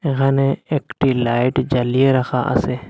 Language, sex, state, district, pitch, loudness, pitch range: Bengali, male, Assam, Hailakandi, 130 Hz, -18 LUFS, 125-135 Hz